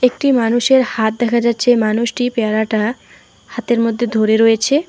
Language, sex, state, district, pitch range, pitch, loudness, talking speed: Bengali, female, West Bengal, Alipurduar, 220-245 Hz, 235 Hz, -15 LUFS, 135 wpm